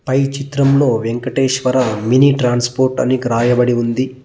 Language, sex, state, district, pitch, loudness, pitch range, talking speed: Telugu, male, Telangana, Mahabubabad, 130 Hz, -15 LUFS, 120-135 Hz, 125 wpm